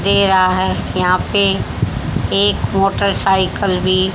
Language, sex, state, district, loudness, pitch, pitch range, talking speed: Hindi, female, Haryana, Jhajjar, -15 LUFS, 185 Hz, 185-195 Hz, 130 wpm